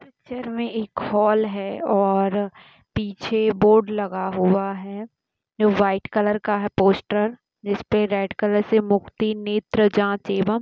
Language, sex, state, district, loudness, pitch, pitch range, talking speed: Hindi, female, Bihar, Gaya, -22 LUFS, 210 Hz, 200-215 Hz, 140 wpm